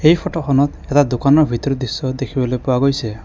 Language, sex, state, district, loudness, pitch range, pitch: Assamese, male, Assam, Kamrup Metropolitan, -17 LUFS, 125-145 Hz, 135 Hz